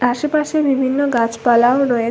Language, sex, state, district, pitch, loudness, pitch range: Bengali, female, West Bengal, Kolkata, 260 Hz, -16 LUFS, 240-285 Hz